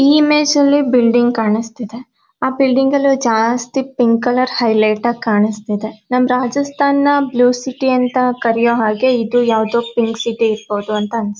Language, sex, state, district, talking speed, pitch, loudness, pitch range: Kannada, female, Karnataka, Mysore, 150 wpm, 240 Hz, -15 LUFS, 225-265 Hz